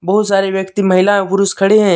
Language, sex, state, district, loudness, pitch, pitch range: Hindi, male, Jharkhand, Deoghar, -13 LUFS, 195 Hz, 190-200 Hz